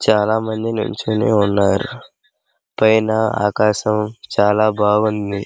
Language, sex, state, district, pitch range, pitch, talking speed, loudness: Telugu, male, Andhra Pradesh, Krishna, 105-110 Hz, 105 Hz, 100 wpm, -17 LUFS